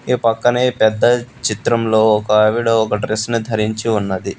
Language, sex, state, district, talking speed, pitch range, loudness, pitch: Telugu, male, Telangana, Hyderabad, 150 wpm, 105-120 Hz, -16 LUFS, 110 Hz